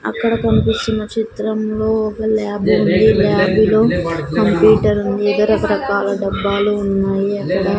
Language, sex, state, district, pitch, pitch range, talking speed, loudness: Telugu, female, Andhra Pradesh, Sri Satya Sai, 200 Hz, 165-215 Hz, 110 wpm, -16 LUFS